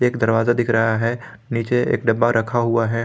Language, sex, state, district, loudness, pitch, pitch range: Hindi, male, Jharkhand, Garhwa, -19 LUFS, 115 Hz, 115-120 Hz